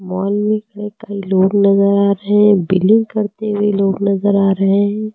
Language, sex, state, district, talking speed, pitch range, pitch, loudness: Hindi, female, Uttar Pradesh, Lucknow, 185 wpm, 195-210 Hz, 200 Hz, -14 LUFS